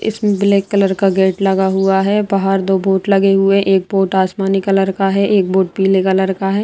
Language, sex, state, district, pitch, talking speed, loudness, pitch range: Hindi, female, Bihar, Begusarai, 195 Hz, 235 wpm, -14 LUFS, 190-195 Hz